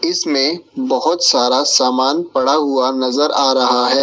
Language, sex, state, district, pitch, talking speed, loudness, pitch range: Hindi, male, Rajasthan, Jaipur, 135 Hz, 150 wpm, -14 LUFS, 130-155 Hz